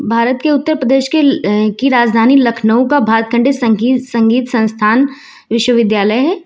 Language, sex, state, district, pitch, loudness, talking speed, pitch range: Hindi, female, Uttar Pradesh, Lucknow, 245 Hz, -12 LUFS, 160 wpm, 225-270 Hz